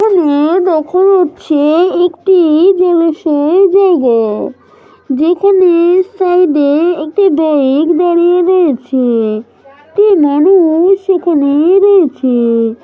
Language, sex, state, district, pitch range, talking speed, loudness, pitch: Bengali, female, West Bengal, Malda, 290-370 Hz, 80 wpm, -10 LUFS, 335 Hz